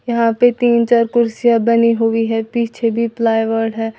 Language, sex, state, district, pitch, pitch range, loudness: Hindi, female, Uttar Pradesh, Lalitpur, 230 Hz, 225-235 Hz, -15 LUFS